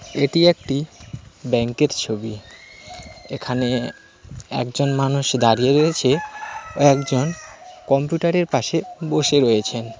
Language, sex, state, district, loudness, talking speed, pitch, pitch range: Bengali, male, West Bengal, Cooch Behar, -19 LUFS, 95 wpm, 135 Hz, 120-155 Hz